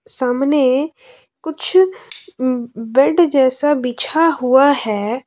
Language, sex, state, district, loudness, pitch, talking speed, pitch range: Hindi, female, Jharkhand, Deoghar, -16 LUFS, 280 Hz, 80 wpm, 255-345 Hz